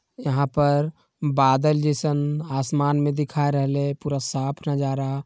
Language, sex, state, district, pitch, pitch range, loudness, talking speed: Magahi, male, Bihar, Jamui, 145 Hz, 140-150 Hz, -23 LUFS, 135 wpm